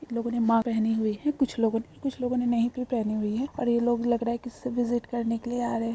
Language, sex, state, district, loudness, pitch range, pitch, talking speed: Hindi, female, Jharkhand, Sahebganj, -27 LUFS, 230-245 Hz, 235 Hz, 290 wpm